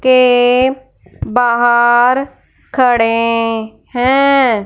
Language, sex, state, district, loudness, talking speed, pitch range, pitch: Hindi, female, Punjab, Fazilka, -12 LUFS, 50 wpm, 235-255 Hz, 245 Hz